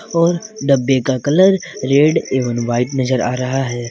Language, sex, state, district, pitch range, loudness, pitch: Hindi, male, Jharkhand, Garhwa, 125-160 Hz, -16 LUFS, 135 Hz